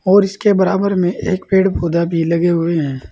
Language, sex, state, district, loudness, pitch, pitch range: Hindi, male, Uttar Pradesh, Saharanpur, -15 LUFS, 185 Hz, 170-195 Hz